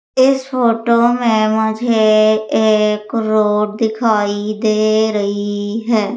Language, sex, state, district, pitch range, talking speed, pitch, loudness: Hindi, female, Madhya Pradesh, Umaria, 210-230 Hz, 95 wpm, 215 Hz, -15 LUFS